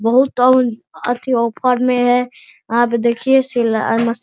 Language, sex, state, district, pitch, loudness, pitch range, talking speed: Hindi, male, Bihar, Araria, 245 Hz, -16 LUFS, 235-255 Hz, 170 wpm